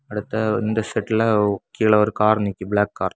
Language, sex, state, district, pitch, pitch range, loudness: Tamil, male, Tamil Nadu, Kanyakumari, 105 Hz, 105-110 Hz, -20 LUFS